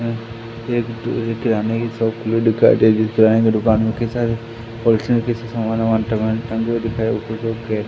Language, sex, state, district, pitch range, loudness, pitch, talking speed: Hindi, male, Madhya Pradesh, Katni, 110-115 Hz, -18 LUFS, 115 Hz, 215 wpm